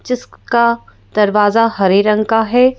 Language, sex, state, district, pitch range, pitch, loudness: Hindi, female, Madhya Pradesh, Bhopal, 210-235 Hz, 225 Hz, -14 LUFS